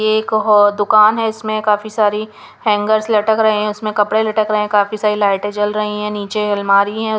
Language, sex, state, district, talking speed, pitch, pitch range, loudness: Hindi, female, Punjab, Pathankot, 210 wpm, 210 Hz, 210-215 Hz, -15 LUFS